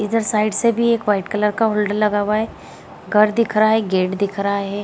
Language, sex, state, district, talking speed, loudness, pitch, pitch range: Hindi, female, Bihar, Jahanabad, 250 wpm, -18 LUFS, 210 Hz, 205-220 Hz